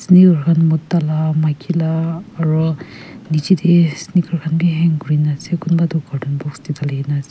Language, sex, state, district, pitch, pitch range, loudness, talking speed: Nagamese, female, Nagaland, Kohima, 160 Hz, 150-170 Hz, -16 LUFS, 180 wpm